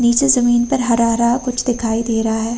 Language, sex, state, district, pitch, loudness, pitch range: Hindi, female, Uttar Pradesh, Hamirpur, 240 Hz, -16 LUFS, 230-245 Hz